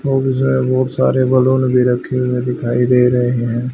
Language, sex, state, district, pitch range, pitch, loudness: Hindi, male, Haryana, Rohtak, 125-130 Hz, 125 Hz, -15 LUFS